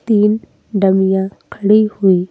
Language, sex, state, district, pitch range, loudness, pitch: Hindi, female, Madhya Pradesh, Bhopal, 190-210 Hz, -15 LUFS, 200 Hz